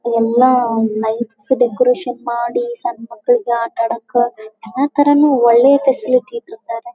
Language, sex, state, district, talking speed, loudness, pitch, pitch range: Kannada, female, Karnataka, Dharwad, 120 wpm, -15 LUFS, 240 Hz, 230-270 Hz